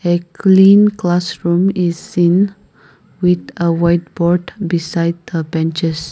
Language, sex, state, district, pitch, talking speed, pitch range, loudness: English, female, Nagaland, Kohima, 175 Hz, 120 wpm, 170-185 Hz, -15 LUFS